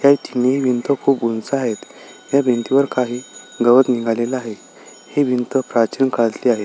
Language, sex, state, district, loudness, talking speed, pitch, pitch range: Marathi, male, Maharashtra, Sindhudurg, -18 LUFS, 160 wpm, 125 Hz, 120-135 Hz